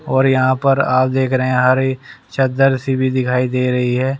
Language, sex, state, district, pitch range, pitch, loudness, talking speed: Hindi, male, Haryana, Rohtak, 130-135 Hz, 130 Hz, -16 LUFS, 215 wpm